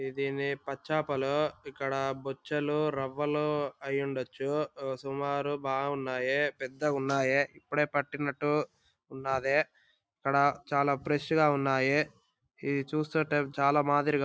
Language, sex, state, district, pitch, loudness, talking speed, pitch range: Telugu, male, Andhra Pradesh, Anantapur, 140 Hz, -31 LUFS, 95 wpm, 135-150 Hz